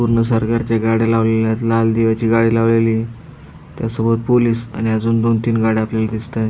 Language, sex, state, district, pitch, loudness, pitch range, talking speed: Marathi, male, Maharashtra, Aurangabad, 115 Hz, -16 LUFS, 110-115 Hz, 155 wpm